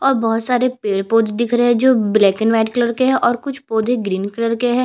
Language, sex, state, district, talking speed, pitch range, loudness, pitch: Hindi, female, Chhattisgarh, Bastar, 260 wpm, 220-250 Hz, -16 LUFS, 235 Hz